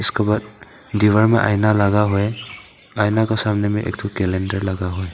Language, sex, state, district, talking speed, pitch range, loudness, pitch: Hindi, male, Arunachal Pradesh, Papum Pare, 210 wpm, 100-105 Hz, -18 LUFS, 105 Hz